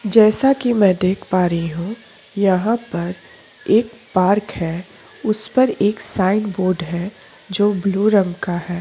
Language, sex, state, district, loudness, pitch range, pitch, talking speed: Hindi, female, Chhattisgarh, Korba, -18 LUFS, 180-215 Hz, 195 Hz, 155 wpm